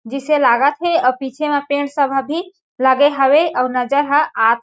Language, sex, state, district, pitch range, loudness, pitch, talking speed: Chhattisgarhi, female, Chhattisgarh, Jashpur, 260-300 Hz, -16 LUFS, 285 Hz, 205 wpm